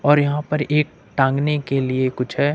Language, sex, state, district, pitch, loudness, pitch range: Hindi, male, Jharkhand, Ranchi, 145 Hz, -20 LUFS, 130-150 Hz